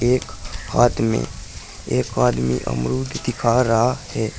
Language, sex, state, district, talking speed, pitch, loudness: Hindi, male, Uttar Pradesh, Saharanpur, 125 wpm, 110 Hz, -20 LUFS